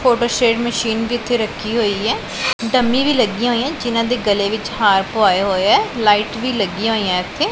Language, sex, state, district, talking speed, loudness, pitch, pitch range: Punjabi, female, Punjab, Pathankot, 190 wpm, -17 LUFS, 225 Hz, 205-240 Hz